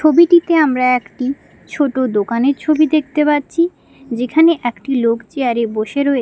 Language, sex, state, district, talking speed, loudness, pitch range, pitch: Bengali, female, West Bengal, Paschim Medinipur, 155 wpm, -15 LUFS, 240-310 Hz, 275 Hz